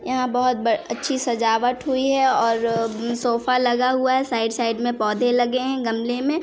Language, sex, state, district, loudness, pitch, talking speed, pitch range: Hindi, female, Chhattisgarh, Sarguja, -21 LUFS, 245 Hz, 205 wpm, 230-260 Hz